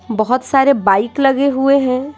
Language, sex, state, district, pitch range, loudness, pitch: Hindi, female, Bihar, Patna, 240-275 Hz, -14 LUFS, 270 Hz